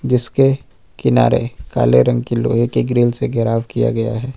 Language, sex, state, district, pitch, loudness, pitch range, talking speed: Hindi, male, Jharkhand, Ranchi, 120 Hz, -16 LUFS, 115-125 Hz, 180 wpm